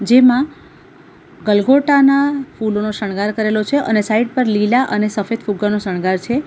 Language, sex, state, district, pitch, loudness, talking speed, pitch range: Gujarati, female, Gujarat, Valsad, 220 Hz, -16 LUFS, 160 wpm, 210-260 Hz